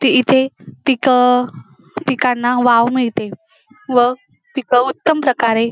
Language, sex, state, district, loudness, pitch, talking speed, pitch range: Marathi, female, Maharashtra, Dhule, -15 LUFS, 250 Hz, 105 wpm, 240-260 Hz